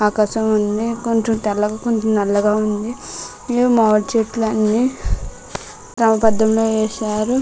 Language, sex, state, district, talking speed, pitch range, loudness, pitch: Telugu, female, Andhra Pradesh, Krishna, 105 wpm, 215-225 Hz, -18 LUFS, 220 Hz